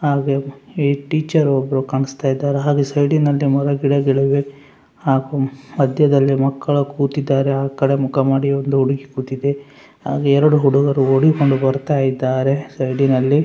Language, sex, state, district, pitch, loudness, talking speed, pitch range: Kannada, male, Karnataka, Raichur, 140 Hz, -17 LUFS, 125 wpm, 135-140 Hz